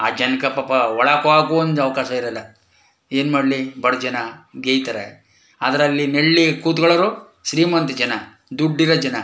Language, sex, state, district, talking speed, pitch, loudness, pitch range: Kannada, male, Karnataka, Chamarajanagar, 125 wpm, 140 Hz, -18 LUFS, 125-155 Hz